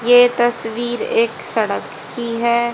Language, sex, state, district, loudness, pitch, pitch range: Hindi, female, Haryana, Jhajjar, -17 LUFS, 240 Hz, 235-245 Hz